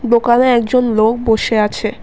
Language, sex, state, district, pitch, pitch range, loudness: Bengali, female, Assam, Kamrup Metropolitan, 235 Hz, 220-245 Hz, -13 LUFS